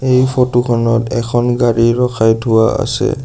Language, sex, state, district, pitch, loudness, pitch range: Assamese, male, Assam, Sonitpur, 120 Hz, -13 LUFS, 115-125 Hz